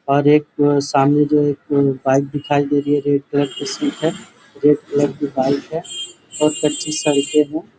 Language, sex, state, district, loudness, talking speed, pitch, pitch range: Hindi, male, Jharkhand, Sahebganj, -18 LUFS, 175 wpm, 145 Hz, 140-150 Hz